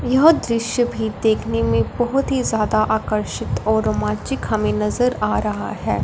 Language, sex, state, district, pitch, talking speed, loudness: Hindi, female, Punjab, Fazilka, 215 Hz, 160 wpm, -20 LUFS